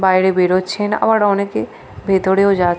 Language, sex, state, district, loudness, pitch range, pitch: Bengali, female, West Bengal, Paschim Medinipur, -16 LUFS, 185-200 Hz, 190 Hz